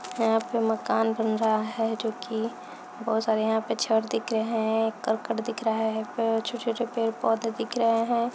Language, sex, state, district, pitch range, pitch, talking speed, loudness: Hindi, female, Bihar, Jahanabad, 220-230 Hz, 225 Hz, 185 wpm, -27 LUFS